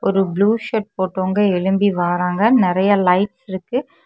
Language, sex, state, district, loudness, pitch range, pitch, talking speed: Tamil, female, Tamil Nadu, Kanyakumari, -17 LUFS, 185-215 Hz, 195 Hz, 135 wpm